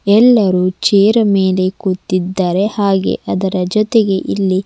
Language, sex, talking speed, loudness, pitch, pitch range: Kannada, female, 105 wpm, -14 LUFS, 195 Hz, 185-210 Hz